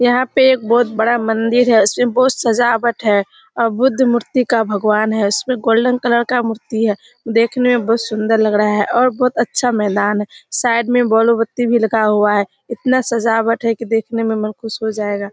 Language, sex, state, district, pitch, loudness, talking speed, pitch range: Hindi, female, Bihar, Kishanganj, 230 Hz, -15 LUFS, 210 wpm, 220-245 Hz